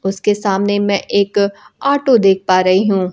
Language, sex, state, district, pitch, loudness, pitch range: Hindi, female, Bihar, Kaimur, 200 Hz, -14 LUFS, 190-205 Hz